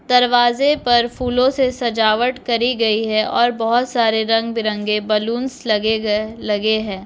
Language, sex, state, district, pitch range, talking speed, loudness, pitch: Hindi, female, Bihar, Lakhisarai, 220-245 Hz, 155 wpm, -17 LUFS, 230 Hz